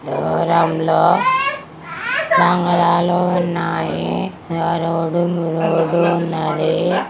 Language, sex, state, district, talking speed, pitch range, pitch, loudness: Telugu, female, Andhra Pradesh, Guntur, 70 wpm, 165-175 Hz, 170 Hz, -17 LUFS